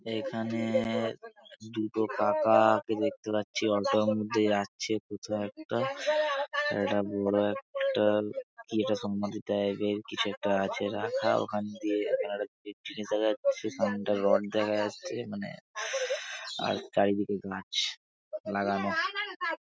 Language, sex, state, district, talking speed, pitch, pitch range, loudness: Bengali, male, West Bengal, Paschim Medinipur, 115 wpm, 105 Hz, 105-155 Hz, -30 LUFS